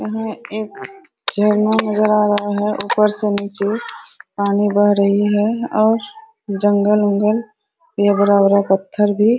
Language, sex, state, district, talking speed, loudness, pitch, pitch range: Hindi, female, Bihar, Araria, 140 wpm, -16 LUFS, 210 Hz, 205-220 Hz